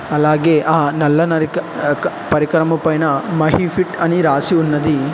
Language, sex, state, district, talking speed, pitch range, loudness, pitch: Telugu, male, Telangana, Hyderabad, 130 wpm, 150-165 Hz, -15 LUFS, 160 Hz